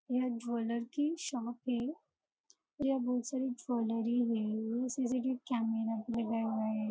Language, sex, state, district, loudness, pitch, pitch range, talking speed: Hindi, female, Maharashtra, Nagpur, -35 LUFS, 240 Hz, 230-255 Hz, 150 wpm